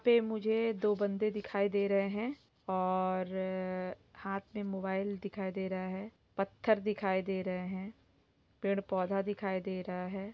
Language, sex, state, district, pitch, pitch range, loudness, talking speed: Hindi, female, Jharkhand, Sahebganj, 195 Hz, 190-205 Hz, -35 LUFS, 150 wpm